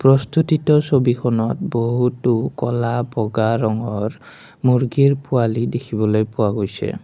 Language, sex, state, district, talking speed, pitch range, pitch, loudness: Assamese, male, Assam, Kamrup Metropolitan, 95 wpm, 110-130 Hz, 120 Hz, -19 LUFS